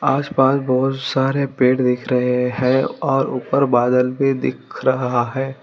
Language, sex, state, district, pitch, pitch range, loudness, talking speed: Hindi, female, Telangana, Hyderabad, 130 Hz, 125-135 Hz, -18 LUFS, 160 wpm